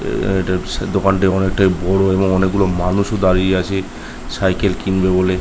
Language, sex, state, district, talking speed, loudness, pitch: Bengali, male, West Bengal, Malda, 135 wpm, -16 LUFS, 95 Hz